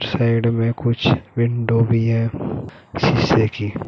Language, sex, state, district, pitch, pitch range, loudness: Hindi, male, Uttar Pradesh, Shamli, 115 Hz, 115-120 Hz, -19 LUFS